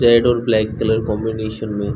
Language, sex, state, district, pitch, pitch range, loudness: Hindi, male, Chhattisgarh, Bilaspur, 110 Hz, 110-115 Hz, -18 LUFS